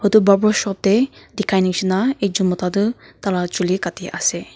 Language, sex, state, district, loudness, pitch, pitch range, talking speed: Nagamese, female, Nagaland, Kohima, -19 LUFS, 195 Hz, 185-215 Hz, 170 wpm